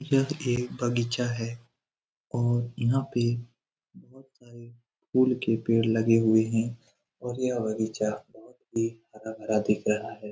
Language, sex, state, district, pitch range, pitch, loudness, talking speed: Hindi, male, Bihar, Lakhisarai, 115-125 Hz, 120 Hz, -27 LUFS, 140 wpm